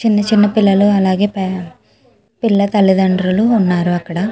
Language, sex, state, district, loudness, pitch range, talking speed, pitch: Telugu, female, Andhra Pradesh, Srikakulam, -14 LUFS, 185-210 Hz, 110 wpm, 200 Hz